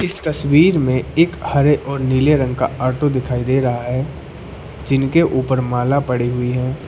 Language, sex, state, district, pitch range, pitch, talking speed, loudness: Hindi, male, Uttar Pradesh, Lucknow, 125-145 Hz, 135 Hz, 165 wpm, -17 LUFS